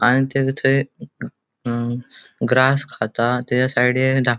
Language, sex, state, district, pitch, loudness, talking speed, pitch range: Konkani, male, Goa, North and South Goa, 125 Hz, -19 LUFS, 135 wpm, 120-135 Hz